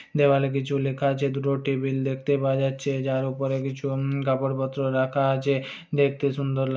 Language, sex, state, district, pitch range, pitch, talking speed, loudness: Bajjika, male, Bihar, Vaishali, 135-140 Hz, 135 Hz, 185 wpm, -25 LUFS